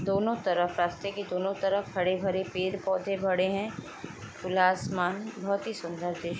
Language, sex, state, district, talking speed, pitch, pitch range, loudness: Hindi, female, Chhattisgarh, Sukma, 180 wpm, 190 Hz, 180-200 Hz, -30 LUFS